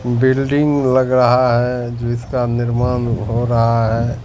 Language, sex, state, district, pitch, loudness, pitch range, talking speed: Hindi, male, Bihar, Katihar, 120 Hz, -16 LUFS, 120-130 Hz, 125 wpm